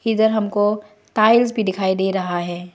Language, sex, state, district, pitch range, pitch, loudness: Hindi, female, Arunachal Pradesh, Lower Dibang Valley, 190-220 Hz, 210 Hz, -19 LUFS